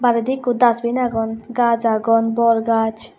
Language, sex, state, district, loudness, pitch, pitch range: Chakma, female, Tripura, West Tripura, -18 LUFS, 230 Hz, 225-240 Hz